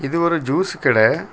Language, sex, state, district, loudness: Tamil, male, Tamil Nadu, Kanyakumari, -18 LUFS